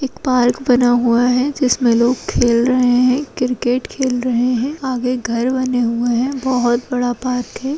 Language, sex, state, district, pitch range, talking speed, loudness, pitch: Hindi, female, Chhattisgarh, Kabirdham, 245-260 Hz, 175 wpm, -16 LUFS, 250 Hz